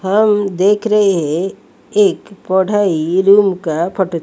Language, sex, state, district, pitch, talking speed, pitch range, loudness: Hindi, female, Odisha, Malkangiri, 195 Hz, 130 wpm, 180-205 Hz, -14 LUFS